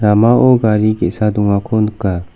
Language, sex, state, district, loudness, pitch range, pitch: Garo, male, Meghalaya, South Garo Hills, -13 LUFS, 100-110 Hz, 105 Hz